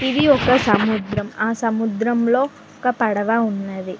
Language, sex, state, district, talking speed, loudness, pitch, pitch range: Telugu, female, Telangana, Mahabubabad, 120 wpm, -19 LUFS, 225 Hz, 210-250 Hz